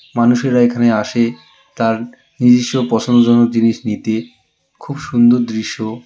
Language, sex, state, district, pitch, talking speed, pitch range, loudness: Bengali, male, West Bengal, Alipurduar, 120 Hz, 110 wpm, 115-120 Hz, -14 LUFS